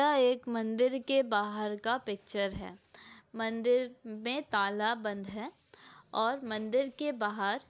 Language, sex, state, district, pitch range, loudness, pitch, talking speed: Hindi, female, Maharashtra, Pune, 210-250 Hz, -32 LUFS, 225 Hz, 140 wpm